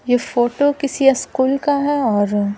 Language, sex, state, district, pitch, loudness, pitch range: Hindi, female, Bihar, Patna, 260 Hz, -17 LUFS, 240-280 Hz